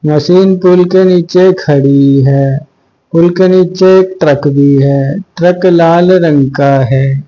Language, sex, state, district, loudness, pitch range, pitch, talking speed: Hindi, male, Haryana, Charkhi Dadri, -8 LUFS, 140-185 Hz, 165 Hz, 150 wpm